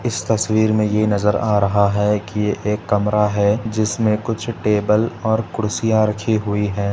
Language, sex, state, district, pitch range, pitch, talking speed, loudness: Hindi, male, Uttar Pradesh, Etah, 105-110 Hz, 105 Hz, 180 wpm, -18 LUFS